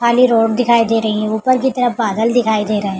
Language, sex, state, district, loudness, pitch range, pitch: Hindi, female, Bihar, Begusarai, -15 LUFS, 220-245 Hz, 230 Hz